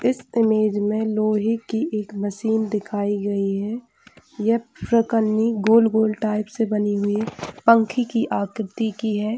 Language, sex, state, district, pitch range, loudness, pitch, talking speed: Hindi, female, Jharkhand, Jamtara, 210-230 Hz, -22 LUFS, 220 Hz, 160 wpm